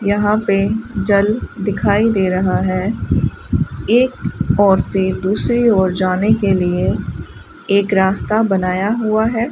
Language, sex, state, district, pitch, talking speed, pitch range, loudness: Hindi, female, Rajasthan, Bikaner, 200 Hz, 125 wpm, 190-215 Hz, -16 LUFS